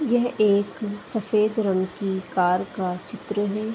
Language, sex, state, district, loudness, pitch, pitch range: Hindi, female, Uttar Pradesh, Hamirpur, -24 LUFS, 205 Hz, 190-215 Hz